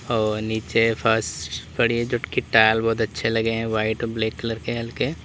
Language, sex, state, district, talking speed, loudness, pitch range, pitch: Hindi, male, Uttar Pradesh, Lalitpur, 195 wpm, -22 LUFS, 110-115 Hz, 115 Hz